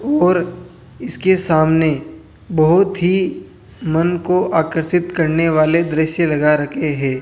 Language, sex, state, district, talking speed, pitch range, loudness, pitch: Hindi, male, Rajasthan, Jaipur, 115 wpm, 155-180 Hz, -16 LUFS, 160 Hz